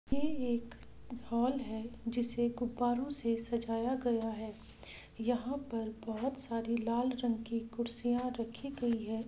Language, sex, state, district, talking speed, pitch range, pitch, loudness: Hindi, female, Bihar, Saran, 135 wpm, 230-245 Hz, 235 Hz, -36 LUFS